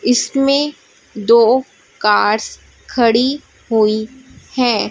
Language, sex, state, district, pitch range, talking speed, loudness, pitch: Hindi, female, Chhattisgarh, Raipur, 220-260 Hz, 75 wpm, -15 LUFS, 235 Hz